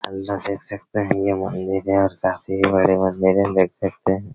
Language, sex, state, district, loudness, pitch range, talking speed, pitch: Hindi, male, Chhattisgarh, Raigarh, -20 LUFS, 95-100 Hz, 165 wpm, 95 Hz